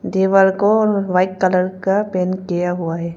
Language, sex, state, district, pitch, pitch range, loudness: Hindi, female, Arunachal Pradesh, Papum Pare, 185 Hz, 180-195 Hz, -17 LUFS